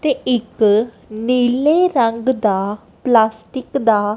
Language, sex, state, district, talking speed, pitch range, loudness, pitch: Punjabi, female, Punjab, Kapurthala, 100 wpm, 215-260 Hz, -17 LUFS, 230 Hz